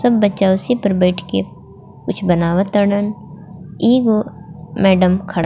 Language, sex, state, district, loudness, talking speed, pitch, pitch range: Bhojpuri, female, Jharkhand, Palamu, -16 LUFS, 130 wpm, 190 Hz, 175-205 Hz